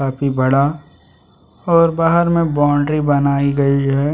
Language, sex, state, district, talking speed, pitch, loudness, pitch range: Hindi, male, Chhattisgarh, Sukma, 145 wpm, 145 Hz, -15 LUFS, 140-160 Hz